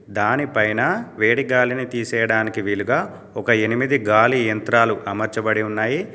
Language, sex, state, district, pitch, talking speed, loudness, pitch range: Telugu, male, Telangana, Komaram Bheem, 110 Hz, 105 wpm, -19 LUFS, 110-120 Hz